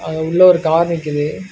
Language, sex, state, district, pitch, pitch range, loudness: Tamil, male, Karnataka, Bangalore, 160 Hz, 160-175 Hz, -14 LUFS